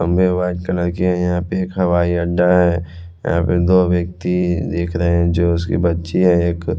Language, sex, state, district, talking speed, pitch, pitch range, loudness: Hindi, male, Chhattisgarh, Raipur, 220 wpm, 85 Hz, 85-90 Hz, -17 LUFS